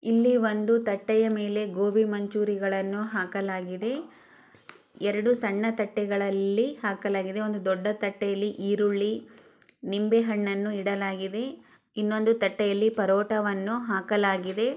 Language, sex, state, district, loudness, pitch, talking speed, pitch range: Kannada, female, Karnataka, Chamarajanagar, -27 LUFS, 210 Hz, 85 wpm, 200-220 Hz